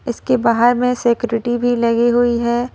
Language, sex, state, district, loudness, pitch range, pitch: Hindi, female, Jharkhand, Ranchi, -16 LUFS, 235-245 Hz, 240 Hz